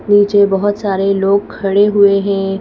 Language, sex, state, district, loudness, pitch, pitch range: Hindi, female, Madhya Pradesh, Bhopal, -13 LUFS, 200 Hz, 195-205 Hz